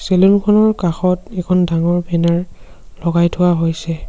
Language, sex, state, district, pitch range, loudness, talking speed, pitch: Assamese, male, Assam, Sonitpur, 170-180 Hz, -15 LUFS, 115 wpm, 175 Hz